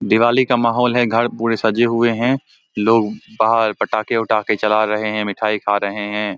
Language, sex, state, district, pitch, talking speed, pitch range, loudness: Hindi, male, Bihar, Samastipur, 110 Hz, 190 wpm, 105-120 Hz, -17 LUFS